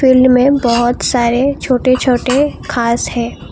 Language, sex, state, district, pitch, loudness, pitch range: Hindi, female, Assam, Kamrup Metropolitan, 255 Hz, -13 LUFS, 240-260 Hz